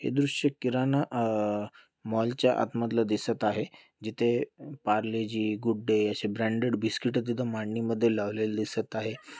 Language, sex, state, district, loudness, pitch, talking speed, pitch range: Marathi, male, Maharashtra, Pune, -29 LUFS, 110 Hz, 120 wpm, 110-120 Hz